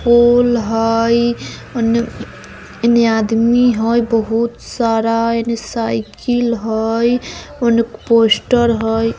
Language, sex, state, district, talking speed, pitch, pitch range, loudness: Bajjika, female, Bihar, Vaishali, 85 wpm, 230 Hz, 225-235 Hz, -15 LUFS